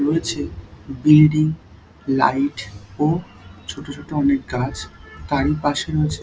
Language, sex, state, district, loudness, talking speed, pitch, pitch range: Bengali, male, West Bengal, Dakshin Dinajpur, -20 LUFS, 105 wpm, 135 Hz, 100-150 Hz